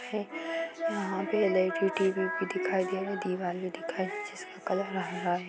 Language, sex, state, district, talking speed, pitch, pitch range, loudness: Hindi, female, Bihar, Saran, 210 wpm, 190 Hz, 185-205 Hz, -31 LUFS